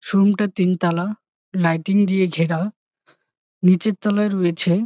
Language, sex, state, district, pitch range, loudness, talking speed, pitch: Bengali, male, West Bengal, Jalpaiguri, 175-205 Hz, -20 LUFS, 135 wpm, 190 Hz